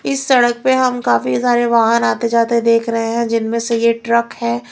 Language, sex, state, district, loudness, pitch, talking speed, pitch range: Hindi, female, Chhattisgarh, Raipur, -15 LUFS, 230 Hz, 215 wpm, 230-240 Hz